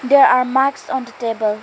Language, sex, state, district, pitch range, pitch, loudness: English, female, Arunachal Pradesh, Lower Dibang Valley, 230-270 Hz, 250 Hz, -16 LUFS